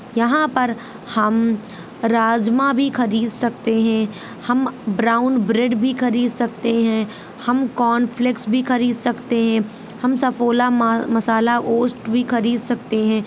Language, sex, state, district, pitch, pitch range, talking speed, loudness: Hindi, female, Bihar, Saharsa, 235 Hz, 225-245 Hz, 130 wpm, -19 LUFS